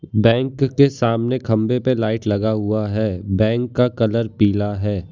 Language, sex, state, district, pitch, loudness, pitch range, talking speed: Hindi, male, Gujarat, Valsad, 110 Hz, -19 LUFS, 105-125 Hz, 165 wpm